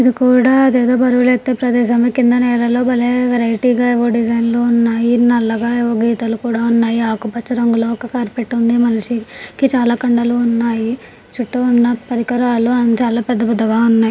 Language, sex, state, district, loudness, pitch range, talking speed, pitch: Telugu, female, Andhra Pradesh, Srikakulam, -14 LUFS, 230-245 Hz, 165 wpm, 240 Hz